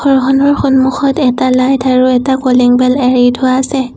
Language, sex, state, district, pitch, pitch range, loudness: Assamese, female, Assam, Sonitpur, 260 Hz, 255-270 Hz, -10 LUFS